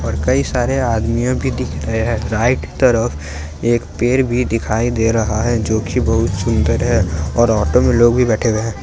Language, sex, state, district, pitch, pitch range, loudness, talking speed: Hindi, male, Bihar, Muzaffarpur, 115 Hz, 105-120 Hz, -16 LUFS, 205 wpm